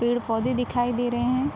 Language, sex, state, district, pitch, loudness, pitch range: Hindi, female, Bihar, Araria, 245 Hz, -25 LUFS, 240-250 Hz